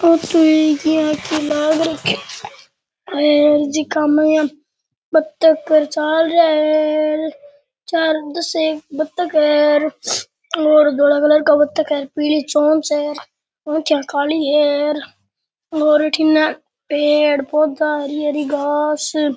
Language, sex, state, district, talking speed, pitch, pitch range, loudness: Rajasthani, male, Rajasthan, Churu, 120 wpm, 305 Hz, 295-315 Hz, -16 LUFS